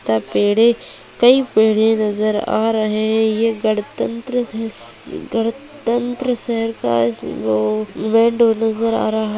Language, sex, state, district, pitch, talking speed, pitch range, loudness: Hindi, female, Bihar, Purnia, 225 Hz, 120 wpm, 215-230 Hz, -18 LUFS